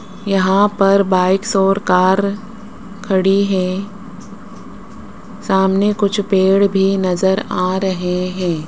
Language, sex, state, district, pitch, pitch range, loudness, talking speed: Hindi, female, Rajasthan, Jaipur, 195 Hz, 190-205 Hz, -15 LUFS, 105 wpm